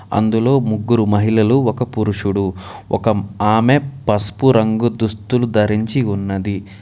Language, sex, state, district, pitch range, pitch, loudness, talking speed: Telugu, male, Telangana, Hyderabad, 105-120 Hz, 110 Hz, -17 LUFS, 105 wpm